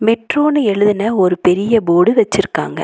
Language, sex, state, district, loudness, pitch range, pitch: Tamil, female, Tamil Nadu, Nilgiris, -14 LUFS, 185-230 Hz, 210 Hz